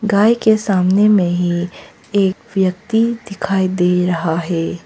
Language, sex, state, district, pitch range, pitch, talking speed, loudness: Hindi, female, Arunachal Pradesh, Papum Pare, 180-210 Hz, 190 Hz, 135 wpm, -16 LUFS